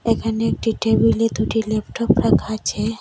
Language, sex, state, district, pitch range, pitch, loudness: Bengali, female, Assam, Hailakandi, 215-225 Hz, 220 Hz, -19 LUFS